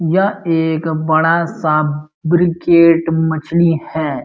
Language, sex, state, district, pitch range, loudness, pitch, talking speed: Hindi, male, Uttar Pradesh, Jalaun, 155-170 Hz, -15 LUFS, 165 Hz, 85 wpm